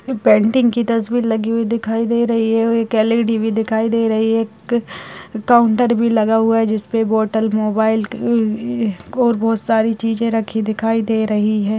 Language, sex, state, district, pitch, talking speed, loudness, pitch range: Kumaoni, female, Uttarakhand, Uttarkashi, 225 Hz, 195 wpm, -17 LUFS, 220-230 Hz